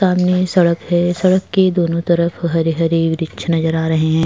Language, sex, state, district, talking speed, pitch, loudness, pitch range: Hindi, female, Bihar, Vaishali, 185 wpm, 170 Hz, -16 LUFS, 165-180 Hz